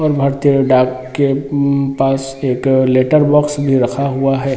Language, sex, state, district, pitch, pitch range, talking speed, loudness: Hindi, male, Bihar, Sitamarhi, 135 Hz, 130-140 Hz, 170 wpm, -14 LUFS